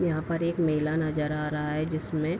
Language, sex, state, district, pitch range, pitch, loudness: Hindi, female, Bihar, Darbhanga, 150-165 Hz, 155 Hz, -28 LUFS